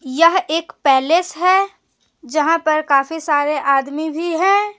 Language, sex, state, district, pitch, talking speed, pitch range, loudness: Hindi, female, Jharkhand, Deoghar, 315 Hz, 140 wpm, 290-345 Hz, -17 LUFS